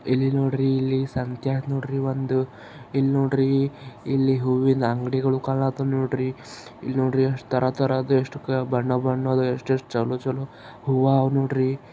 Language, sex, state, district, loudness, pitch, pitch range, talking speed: Kannada, male, Karnataka, Gulbarga, -23 LUFS, 130 Hz, 130-135 Hz, 135 wpm